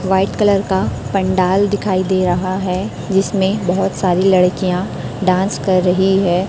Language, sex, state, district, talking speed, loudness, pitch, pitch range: Hindi, female, Chhattisgarh, Raipur, 150 wpm, -16 LUFS, 190 Hz, 185-195 Hz